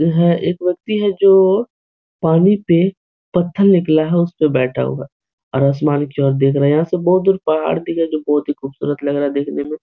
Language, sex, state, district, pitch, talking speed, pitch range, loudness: Hindi, male, Bihar, Supaul, 160 Hz, 220 wpm, 145-180 Hz, -16 LUFS